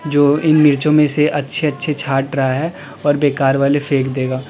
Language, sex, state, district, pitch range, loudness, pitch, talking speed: Hindi, male, Uttar Pradesh, Lalitpur, 135-150 Hz, -15 LUFS, 145 Hz, 200 wpm